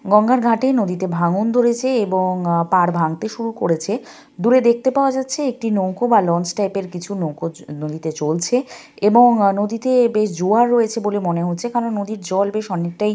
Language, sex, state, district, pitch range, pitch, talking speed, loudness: Bengali, female, West Bengal, North 24 Parganas, 180-240 Hz, 210 Hz, 180 wpm, -18 LUFS